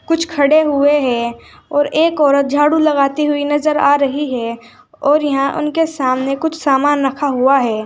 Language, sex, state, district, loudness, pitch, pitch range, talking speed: Hindi, female, Uttar Pradesh, Saharanpur, -15 LUFS, 290 Hz, 275-300 Hz, 175 wpm